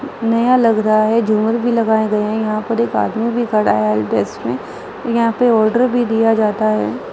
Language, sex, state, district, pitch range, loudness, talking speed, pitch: Hindi, female, Uttar Pradesh, Muzaffarnagar, 215-240 Hz, -16 LUFS, 210 wpm, 230 Hz